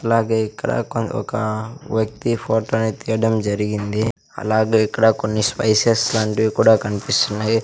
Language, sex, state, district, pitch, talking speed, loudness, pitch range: Telugu, male, Andhra Pradesh, Sri Satya Sai, 110 Hz, 125 wpm, -19 LUFS, 110-115 Hz